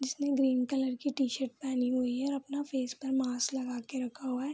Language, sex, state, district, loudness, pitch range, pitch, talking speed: Hindi, female, Bihar, Begusarai, -33 LUFS, 250-270 Hz, 265 Hz, 225 wpm